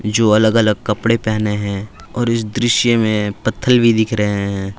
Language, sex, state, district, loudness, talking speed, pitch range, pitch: Hindi, male, Jharkhand, Palamu, -16 LUFS, 190 wpm, 105-115 Hz, 110 Hz